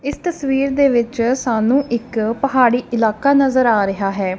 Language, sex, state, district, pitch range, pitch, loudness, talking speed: Punjabi, female, Punjab, Kapurthala, 225-275 Hz, 245 Hz, -16 LUFS, 165 wpm